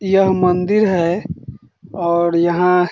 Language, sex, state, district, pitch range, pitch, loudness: Hindi, male, Bihar, Saran, 170-190 Hz, 180 Hz, -16 LUFS